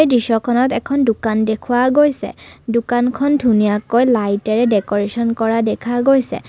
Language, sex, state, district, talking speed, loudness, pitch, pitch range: Assamese, female, Assam, Kamrup Metropolitan, 110 wpm, -16 LUFS, 235 Hz, 220-250 Hz